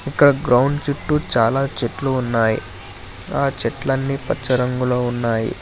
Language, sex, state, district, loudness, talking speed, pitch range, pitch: Telugu, male, Telangana, Hyderabad, -19 LUFS, 115 wpm, 115-140 Hz, 125 Hz